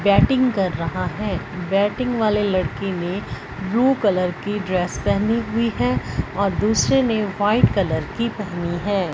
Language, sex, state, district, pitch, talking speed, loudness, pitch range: Hindi, female, Punjab, Fazilka, 200 Hz, 150 wpm, -21 LUFS, 180-220 Hz